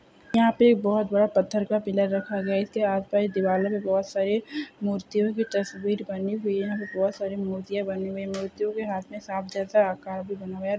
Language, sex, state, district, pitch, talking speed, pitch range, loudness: Hindi, male, Bihar, Purnia, 200 Hz, 235 wpm, 195-210 Hz, -26 LUFS